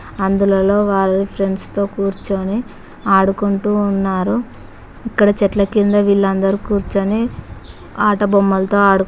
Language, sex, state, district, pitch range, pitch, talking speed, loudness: Telugu, female, Telangana, Karimnagar, 195-205 Hz, 200 Hz, 95 wpm, -16 LUFS